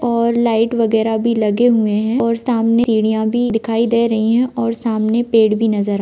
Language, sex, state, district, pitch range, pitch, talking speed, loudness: Hindi, female, Jharkhand, Jamtara, 220-235 Hz, 230 Hz, 200 wpm, -16 LUFS